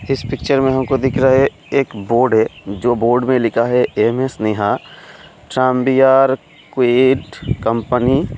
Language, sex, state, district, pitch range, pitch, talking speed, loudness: Hindi, male, Bihar, Kishanganj, 115-135 Hz, 130 Hz, 150 wpm, -16 LUFS